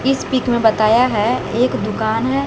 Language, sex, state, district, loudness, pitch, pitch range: Hindi, female, Haryana, Jhajjar, -16 LUFS, 235 Hz, 220-255 Hz